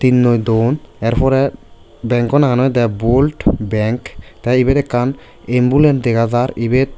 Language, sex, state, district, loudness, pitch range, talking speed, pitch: Chakma, male, Tripura, West Tripura, -15 LUFS, 115-130 Hz, 140 wpm, 120 Hz